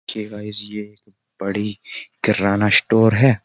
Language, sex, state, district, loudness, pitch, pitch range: Hindi, male, Uttar Pradesh, Jyotiba Phule Nagar, -18 LUFS, 105 Hz, 105-110 Hz